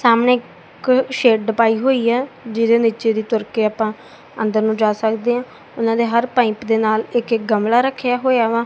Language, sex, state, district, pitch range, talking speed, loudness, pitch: Punjabi, female, Punjab, Kapurthala, 220-245 Hz, 195 wpm, -17 LUFS, 230 Hz